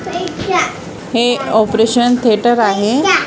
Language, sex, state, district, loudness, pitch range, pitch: Marathi, female, Maharashtra, Washim, -14 LUFS, 220-245 Hz, 235 Hz